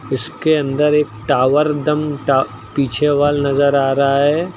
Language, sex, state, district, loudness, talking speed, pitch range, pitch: Hindi, male, Uttar Pradesh, Lucknow, -16 LUFS, 155 wpm, 140-150 Hz, 140 Hz